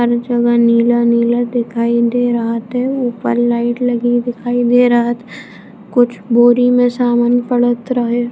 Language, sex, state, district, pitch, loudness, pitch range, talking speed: Hindi, female, Bihar, Jamui, 240 Hz, -14 LUFS, 235-245 Hz, 100 wpm